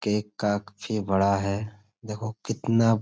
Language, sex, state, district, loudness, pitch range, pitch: Hindi, male, Uttar Pradesh, Budaun, -27 LUFS, 100-110 Hz, 105 Hz